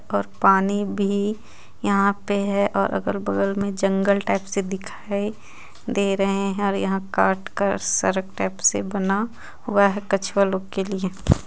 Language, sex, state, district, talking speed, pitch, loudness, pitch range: Hindi, female, Jharkhand, Ranchi, 160 wpm, 195 Hz, -22 LUFS, 190-200 Hz